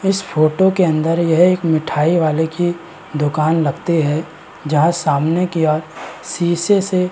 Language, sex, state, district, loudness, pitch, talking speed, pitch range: Hindi, male, Uttar Pradesh, Varanasi, -16 LUFS, 165 Hz, 160 wpm, 155-175 Hz